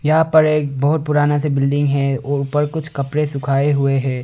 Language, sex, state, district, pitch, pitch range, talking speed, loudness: Hindi, male, Arunachal Pradesh, Longding, 145 Hz, 140-150 Hz, 185 wpm, -17 LUFS